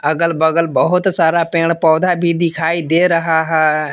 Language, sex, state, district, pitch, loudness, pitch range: Hindi, male, Jharkhand, Palamu, 165 Hz, -14 LUFS, 160-170 Hz